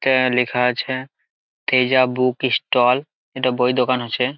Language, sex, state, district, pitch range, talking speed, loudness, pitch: Bengali, male, West Bengal, Jalpaiguri, 125-130 Hz, 135 wpm, -19 LUFS, 125 Hz